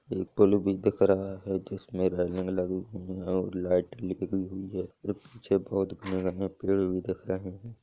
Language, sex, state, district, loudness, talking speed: Hindi, male, Bihar, Lakhisarai, -30 LUFS, 200 wpm